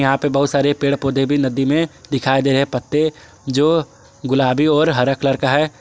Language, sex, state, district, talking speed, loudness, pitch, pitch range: Hindi, male, Jharkhand, Garhwa, 195 wpm, -17 LUFS, 140 Hz, 135-150 Hz